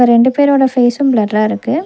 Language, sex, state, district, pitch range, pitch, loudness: Tamil, female, Tamil Nadu, Nilgiris, 230-275 Hz, 245 Hz, -12 LUFS